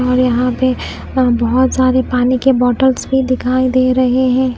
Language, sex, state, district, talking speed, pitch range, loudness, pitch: Hindi, female, Punjab, Pathankot, 170 wpm, 250-260 Hz, -14 LUFS, 255 Hz